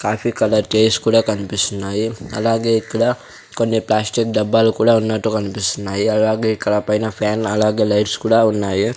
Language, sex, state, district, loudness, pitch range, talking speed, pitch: Telugu, male, Andhra Pradesh, Sri Satya Sai, -17 LUFS, 105-110 Hz, 140 wpm, 110 Hz